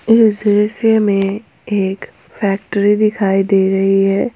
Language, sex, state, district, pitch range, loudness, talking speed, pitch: Hindi, female, Jharkhand, Ranchi, 195-215 Hz, -14 LUFS, 125 wpm, 200 Hz